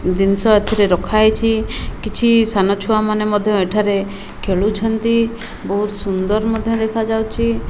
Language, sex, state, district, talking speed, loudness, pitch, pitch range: Odia, female, Odisha, Malkangiri, 115 wpm, -17 LUFS, 215 Hz, 200-225 Hz